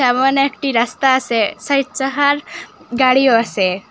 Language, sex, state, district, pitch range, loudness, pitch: Bengali, female, Assam, Hailakandi, 235-275 Hz, -15 LUFS, 260 Hz